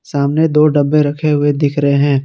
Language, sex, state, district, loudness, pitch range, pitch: Hindi, male, Jharkhand, Garhwa, -13 LUFS, 145-150 Hz, 145 Hz